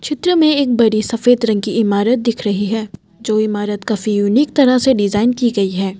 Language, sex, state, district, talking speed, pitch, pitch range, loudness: Hindi, female, Assam, Kamrup Metropolitan, 210 wpm, 220 Hz, 205-245 Hz, -15 LUFS